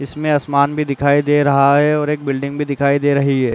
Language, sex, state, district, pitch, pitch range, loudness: Hindi, male, Uttar Pradesh, Muzaffarnagar, 140 Hz, 140-145 Hz, -16 LUFS